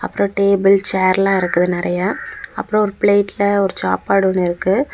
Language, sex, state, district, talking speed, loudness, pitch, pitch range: Tamil, female, Tamil Nadu, Kanyakumari, 160 wpm, -16 LUFS, 195 Hz, 185-200 Hz